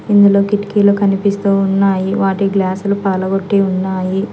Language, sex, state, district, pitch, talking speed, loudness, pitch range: Telugu, female, Telangana, Hyderabad, 195 Hz, 110 wpm, -14 LUFS, 190-200 Hz